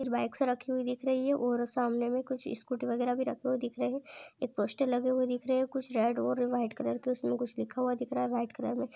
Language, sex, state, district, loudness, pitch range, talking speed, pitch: Hindi, female, Andhra Pradesh, Anantapur, -32 LUFS, 240-260 Hz, 240 wpm, 250 Hz